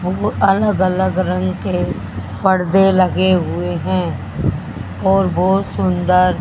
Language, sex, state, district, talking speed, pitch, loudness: Hindi, male, Haryana, Charkhi Dadri, 110 wpm, 185 Hz, -16 LUFS